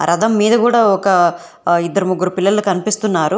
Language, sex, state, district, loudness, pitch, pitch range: Telugu, female, Telangana, Hyderabad, -15 LUFS, 195 Hz, 180-215 Hz